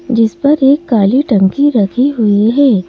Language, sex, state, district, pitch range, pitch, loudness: Hindi, female, Madhya Pradesh, Bhopal, 210-280 Hz, 240 Hz, -11 LUFS